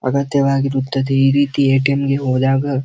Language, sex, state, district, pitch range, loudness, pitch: Kannada, male, Karnataka, Belgaum, 135-140 Hz, -16 LUFS, 135 Hz